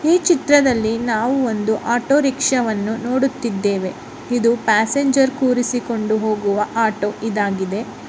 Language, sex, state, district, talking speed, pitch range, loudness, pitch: Kannada, male, Karnataka, Bellary, 105 wpm, 215-265 Hz, -18 LUFS, 235 Hz